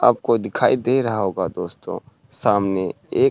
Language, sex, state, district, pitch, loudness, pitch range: Hindi, male, Uttarakhand, Tehri Garhwal, 115 Hz, -21 LUFS, 100-135 Hz